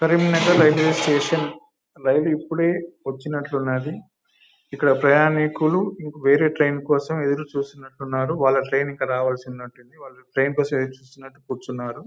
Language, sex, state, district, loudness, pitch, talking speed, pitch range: Telugu, male, Telangana, Nalgonda, -21 LUFS, 145 Hz, 125 wpm, 135-155 Hz